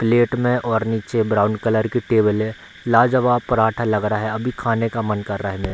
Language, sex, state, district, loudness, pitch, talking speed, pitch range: Hindi, male, Bihar, Bhagalpur, -19 LUFS, 110 Hz, 230 wpm, 105-120 Hz